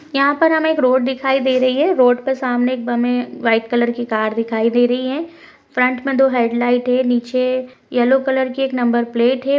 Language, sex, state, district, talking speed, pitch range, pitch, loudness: Hindi, female, Rajasthan, Churu, 220 wpm, 240-265 Hz, 255 Hz, -17 LUFS